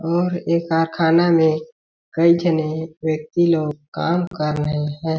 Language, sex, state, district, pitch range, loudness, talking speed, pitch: Hindi, male, Chhattisgarh, Balrampur, 155-170 Hz, -19 LUFS, 140 wpm, 165 Hz